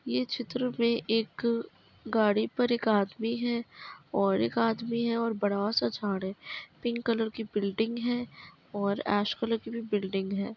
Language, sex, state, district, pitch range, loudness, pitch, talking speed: Hindi, female, Uttar Pradesh, Budaun, 205-235 Hz, -30 LUFS, 225 Hz, 150 wpm